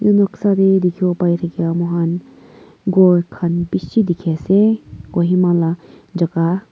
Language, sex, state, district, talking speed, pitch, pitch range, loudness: Nagamese, female, Nagaland, Kohima, 105 wpm, 175 Hz, 170-195 Hz, -16 LUFS